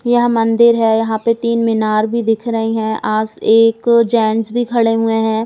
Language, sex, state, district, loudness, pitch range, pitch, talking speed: Hindi, female, Bihar, Gopalganj, -14 LUFS, 220-235 Hz, 225 Hz, 200 wpm